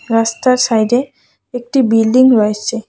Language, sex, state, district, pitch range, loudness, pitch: Bengali, female, West Bengal, Cooch Behar, 225-250 Hz, -13 LUFS, 235 Hz